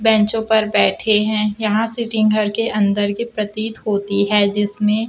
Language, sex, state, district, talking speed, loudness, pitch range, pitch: Hindi, female, Chhattisgarh, Raipur, 175 wpm, -17 LUFS, 205-220 Hz, 215 Hz